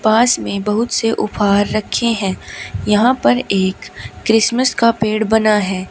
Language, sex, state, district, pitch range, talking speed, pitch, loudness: Hindi, female, Uttar Pradesh, Shamli, 200-230 Hz, 150 wpm, 215 Hz, -15 LUFS